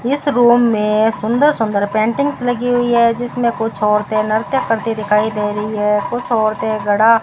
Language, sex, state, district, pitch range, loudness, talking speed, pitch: Hindi, female, Rajasthan, Bikaner, 210-245 Hz, -16 LUFS, 185 wpm, 225 Hz